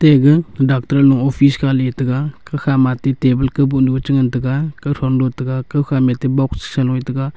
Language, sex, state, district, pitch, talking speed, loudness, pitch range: Wancho, male, Arunachal Pradesh, Longding, 135 Hz, 235 wpm, -16 LUFS, 130-140 Hz